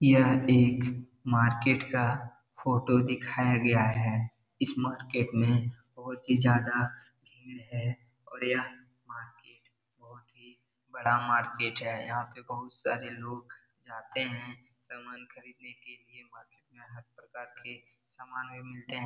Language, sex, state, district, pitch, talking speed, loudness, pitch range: Hindi, male, Bihar, Darbhanga, 120 Hz, 140 wpm, -29 LUFS, 120-125 Hz